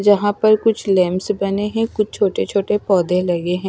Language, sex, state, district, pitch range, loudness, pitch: Hindi, female, Himachal Pradesh, Shimla, 185-210 Hz, -18 LUFS, 200 Hz